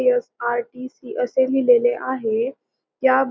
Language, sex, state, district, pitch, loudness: Marathi, female, Maharashtra, Pune, 260 Hz, -21 LUFS